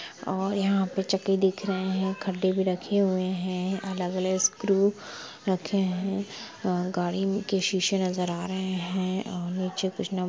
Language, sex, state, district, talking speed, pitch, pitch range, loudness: Hindi, female, Bihar, Sitamarhi, 150 wpm, 190 Hz, 185-195 Hz, -27 LUFS